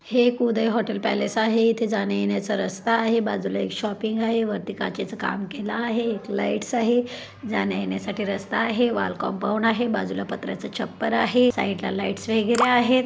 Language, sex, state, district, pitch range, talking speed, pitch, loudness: Marathi, female, Maharashtra, Dhule, 205-235 Hz, 165 wpm, 225 Hz, -24 LUFS